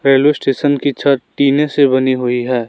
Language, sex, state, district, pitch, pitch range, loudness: Hindi, male, Arunachal Pradesh, Lower Dibang Valley, 135 Hz, 130-140 Hz, -14 LUFS